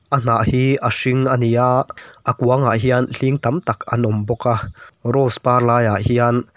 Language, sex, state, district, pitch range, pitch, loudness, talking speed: Mizo, male, Mizoram, Aizawl, 115-130 Hz, 125 Hz, -18 LUFS, 210 wpm